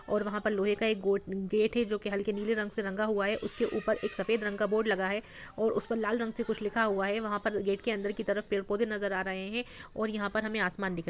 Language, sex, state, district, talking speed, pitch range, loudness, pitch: Hindi, female, Bihar, Sitamarhi, 315 wpm, 200-220 Hz, -32 LUFS, 210 Hz